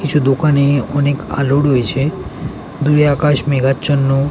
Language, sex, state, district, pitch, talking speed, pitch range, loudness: Bengali, male, West Bengal, North 24 Parganas, 140 Hz, 110 wpm, 135-145 Hz, -15 LUFS